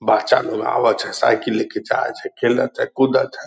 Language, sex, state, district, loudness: Angika, male, Bihar, Purnia, -19 LUFS